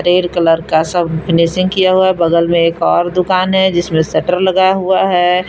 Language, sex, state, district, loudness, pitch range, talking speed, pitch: Hindi, female, Jharkhand, Palamu, -12 LUFS, 170-185 Hz, 185 wpm, 180 Hz